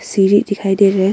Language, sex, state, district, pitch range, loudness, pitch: Hindi, female, Arunachal Pradesh, Longding, 195-200 Hz, -14 LUFS, 200 Hz